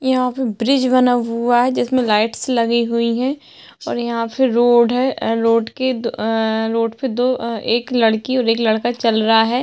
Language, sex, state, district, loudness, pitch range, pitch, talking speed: Hindi, female, Uttarakhand, Tehri Garhwal, -17 LUFS, 230-255 Hz, 235 Hz, 200 wpm